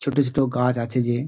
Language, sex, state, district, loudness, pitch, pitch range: Bengali, male, West Bengal, Dakshin Dinajpur, -22 LUFS, 125 Hz, 125-140 Hz